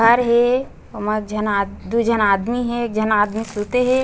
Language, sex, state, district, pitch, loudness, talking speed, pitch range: Chhattisgarhi, female, Chhattisgarh, Bastar, 225 Hz, -19 LUFS, 225 wpm, 210-240 Hz